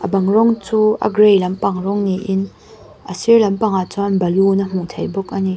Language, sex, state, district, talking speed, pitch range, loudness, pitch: Mizo, female, Mizoram, Aizawl, 205 wpm, 190-210 Hz, -16 LUFS, 195 Hz